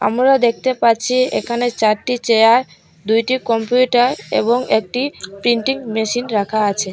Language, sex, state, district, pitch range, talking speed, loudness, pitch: Bengali, female, Assam, Hailakandi, 220-250 Hz, 120 wpm, -16 LUFS, 235 Hz